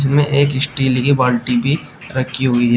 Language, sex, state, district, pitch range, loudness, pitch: Hindi, male, Uttar Pradesh, Shamli, 125-140 Hz, -16 LUFS, 130 Hz